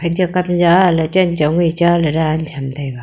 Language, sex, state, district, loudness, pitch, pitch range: Wancho, female, Arunachal Pradesh, Longding, -15 LUFS, 170 Hz, 155-175 Hz